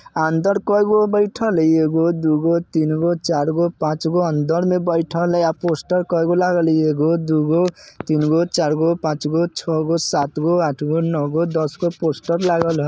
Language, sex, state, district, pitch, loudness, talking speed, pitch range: Bajjika, male, Bihar, Vaishali, 165 Hz, -18 LUFS, 140 wpm, 155-175 Hz